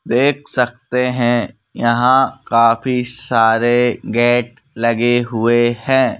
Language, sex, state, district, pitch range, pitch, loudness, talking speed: Hindi, male, Madhya Pradesh, Bhopal, 120-125 Hz, 120 Hz, -15 LUFS, 95 wpm